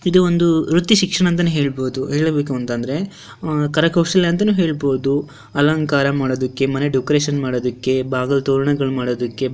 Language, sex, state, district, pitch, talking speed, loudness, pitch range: Kannada, female, Karnataka, Dharwad, 140 Hz, 120 wpm, -18 LUFS, 130-165 Hz